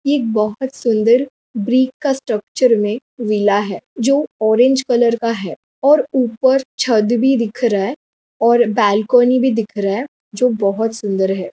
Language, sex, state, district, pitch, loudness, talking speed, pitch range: Hindi, female, Jharkhand, Sahebganj, 235 Hz, -16 LUFS, 160 wpm, 210-260 Hz